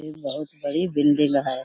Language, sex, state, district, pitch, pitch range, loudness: Hindi, female, Uttar Pradesh, Budaun, 145 Hz, 140-155 Hz, -23 LUFS